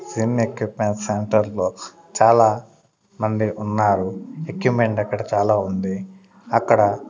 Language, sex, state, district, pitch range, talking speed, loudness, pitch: Telugu, male, Andhra Pradesh, Sri Satya Sai, 105-115 Hz, 100 wpm, -20 LUFS, 110 Hz